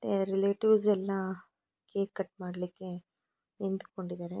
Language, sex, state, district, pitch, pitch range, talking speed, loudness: Kannada, female, Karnataka, Mysore, 195 Hz, 180-200 Hz, 95 wpm, -32 LUFS